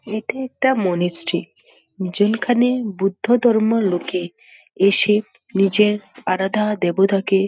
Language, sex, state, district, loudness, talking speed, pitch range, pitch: Bengali, female, West Bengal, Dakshin Dinajpur, -19 LUFS, 95 wpm, 195-230 Hz, 210 Hz